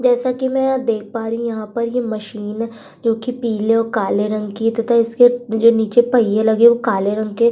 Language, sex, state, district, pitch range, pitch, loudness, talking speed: Hindi, female, Uttar Pradesh, Budaun, 220-240 Hz, 230 Hz, -17 LUFS, 240 wpm